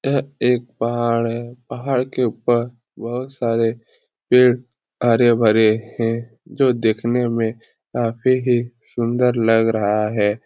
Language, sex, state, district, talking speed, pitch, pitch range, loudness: Hindi, male, Bihar, Lakhisarai, 120 wpm, 120 Hz, 115-125 Hz, -19 LUFS